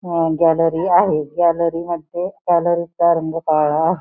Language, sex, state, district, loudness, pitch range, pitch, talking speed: Marathi, female, Maharashtra, Pune, -17 LUFS, 160-170 Hz, 170 Hz, 150 wpm